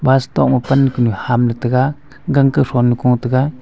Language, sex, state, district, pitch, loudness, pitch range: Wancho, male, Arunachal Pradesh, Longding, 130 Hz, -15 LUFS, 120-135 Hz